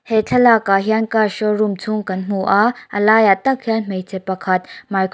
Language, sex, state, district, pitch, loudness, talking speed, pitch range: Mizo, female, Mizoram, Aizawl, 210 Hz, -17 LUFS, 210 wpm, 190-220 Hz